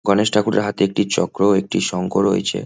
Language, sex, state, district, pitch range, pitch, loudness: Bengali, male, West Bengal, Kolkata, 100-105 Hz, 100 Hz, -18 LUFS